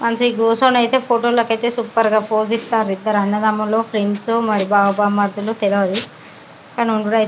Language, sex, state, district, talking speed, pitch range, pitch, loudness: Telugu, female, Telangana, Karimnagar, 90 wpm, 205-230 Hz, 220 Hz, -17 LUFS